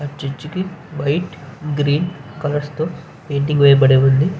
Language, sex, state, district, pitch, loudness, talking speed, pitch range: Telugu, male, Andhra Pradesh, Visakhapatnam, 145 Hz, -18 LUFS, 120 wpm, 140-160 Hz